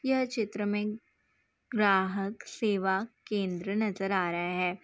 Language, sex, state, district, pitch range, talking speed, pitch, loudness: Hindi, female, Bihar, Saharsa, 190-215 Hz, 125 wpm, 200 Hz, -31 LUFS